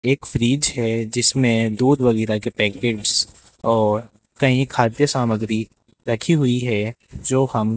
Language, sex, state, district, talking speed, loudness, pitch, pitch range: Hindi, male, Rajasthan, Jaipur, 140 wpm, -20 LUFS, 120 Hz, 110-130 Hz